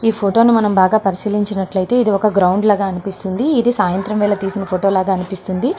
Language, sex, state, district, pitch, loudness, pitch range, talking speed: Telugu, female, Andhra Pradesh, Srikakulam, 200 Hz, -16 LUFS, 190-215 Hz, 175 wpm